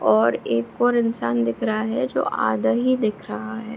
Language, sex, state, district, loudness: Hindi, female, Bihar, Begusarai, -22 LUFS